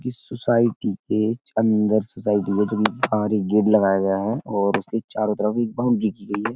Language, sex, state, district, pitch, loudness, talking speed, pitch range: Hindi, male, Uttar Pradesh, Etah, 110 Hz, -22 LUFS, 200 wpm, 105-110 Hz